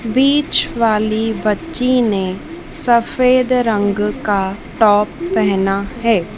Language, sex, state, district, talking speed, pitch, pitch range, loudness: Hindi, female, Madhya Pradesh, Dhar, 95 wpm, 220 Hz, 205-255 Hz, -16 LUFS